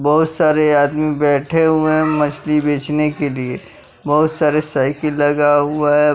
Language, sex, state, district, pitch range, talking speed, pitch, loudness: Hindi, male, Bihar, West Champaran, 145-155 Hz, 155 wpm, 150 Hz, -15 LUFS